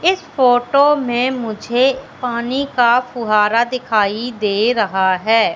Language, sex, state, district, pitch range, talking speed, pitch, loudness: Hindi, female, Madhya Pradesh, Katni, 225-260 Hz, 120 wpm, 240 Hz, -16 LUFS